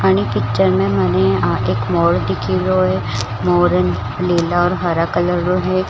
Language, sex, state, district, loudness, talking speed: Marwari, female, Rajasthan, Churu, -16 LUFS, 145 wpm